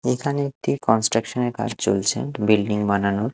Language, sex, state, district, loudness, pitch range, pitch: Bengali, male, Odisha, Malkangiri, -22 LUFS, 105-125 Hz, 110 Hz